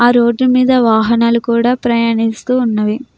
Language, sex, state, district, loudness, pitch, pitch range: Telugu, female, Andhra Pradesh, Krishna, -13 LUFS, 235 Hz, 225-250 Hz